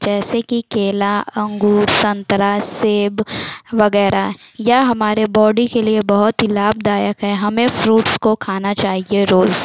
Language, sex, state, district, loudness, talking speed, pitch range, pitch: Hindi, female, Bihar, Jamui, -16 LUFS, 135 wpm, 200-220 Hz, 210 Hz